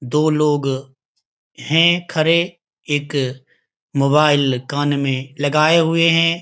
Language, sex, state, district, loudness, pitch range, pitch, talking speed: Hindi, male, Bihar, Begusarai, -17 LUFS, 140-165 Hz, 150 Hz, 105 wpm